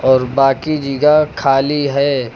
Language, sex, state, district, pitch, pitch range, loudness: Hindi, male, Uttar Pradesh, Lucknow, 140 Hz, 135-150 Hz, -14 LUFS